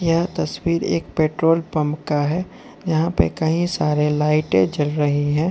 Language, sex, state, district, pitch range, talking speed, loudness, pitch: Hindi, male, Jharkhand, Deoghar, 150-170 Hz, 165 wpm, -20 LUFS, 155 Hz